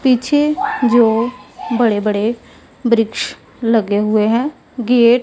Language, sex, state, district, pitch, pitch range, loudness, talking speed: Hindi, female, Punjab, Pathankot, 235 Hz, 220-250 Hz, -16 LUFS, 115 wpm